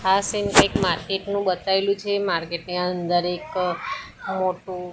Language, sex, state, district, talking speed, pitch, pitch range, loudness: Gujarati, female, Gujarat, Gandhinagar, 145 wpm, 185 Hz, 180-195 Hz, -23 LUFS